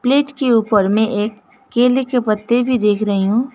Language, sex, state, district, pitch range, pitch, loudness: Hindi, female, West Bengal, Alipurduar, 210-255 Hz, 235 Hz, -16 LUFS